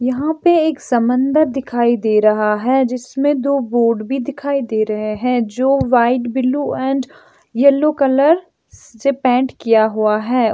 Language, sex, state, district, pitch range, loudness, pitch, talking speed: Hindi, female, Chhattisgarh, Bilaspur, 235-280 Hz, -16 LUFS, 255 Hz, 155 wpm